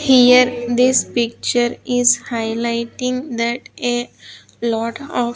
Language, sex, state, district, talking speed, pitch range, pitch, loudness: English, female, Andhra Pradesh, Sri Satya Sai, 100 wpm, 235-250 Hz, 240 Hz, -17 LUFS